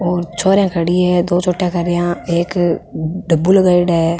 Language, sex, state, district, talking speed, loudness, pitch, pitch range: Rajasthani, female, Rajasthan, Nagaur, 155 wpm, -15 LUFS, 175 Hz, 170-180 Hz